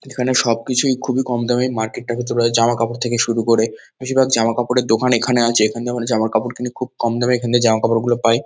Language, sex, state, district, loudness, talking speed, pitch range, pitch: Bengali, male, West Bengal, North 24 Parganas, -18 LUFS, 220 wpm, 115-125 Hz, 120 Hz